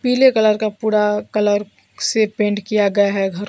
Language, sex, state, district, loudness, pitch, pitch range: Hindi, female, Bihar, Kaimur, -17 LUFS, 210 Hz, 205-215 Hz